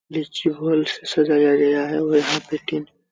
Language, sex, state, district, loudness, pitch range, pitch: Hindi, male, Bihar, Supaul, -20 LUFS, 145-155 Hz, 150 Hz